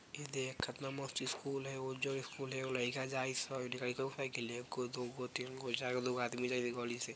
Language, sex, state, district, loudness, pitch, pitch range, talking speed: Bajjika, male, Bihar, Vaishali, -40 LUFS, 130 Hz, 125-135 Hz, 200 wpm